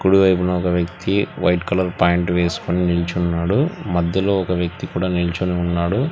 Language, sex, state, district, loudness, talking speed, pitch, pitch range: Telugu, male, Telangana, Hyderabad, -19 LUFS, 145 wpm, 90 Hz, 85-95 Hz